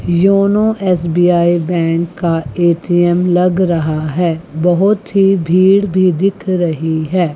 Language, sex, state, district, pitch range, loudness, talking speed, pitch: Hindi, female, Chandigarh, Chandigarh, 170-190 Hz, -13 LUFS, 100 wpm, 175 Hz